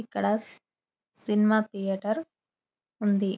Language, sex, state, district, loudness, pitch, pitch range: Telugu, female, Telangana, Nalgonda, -27 LUFS, 210 Hz, 200-220 Hz